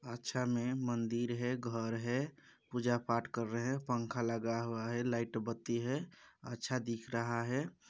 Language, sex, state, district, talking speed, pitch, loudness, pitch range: Hindi, male, Chhattisgarh, Balrampur, 160 wpm, 120 Hz, -38 LUFS, 115-125 Hz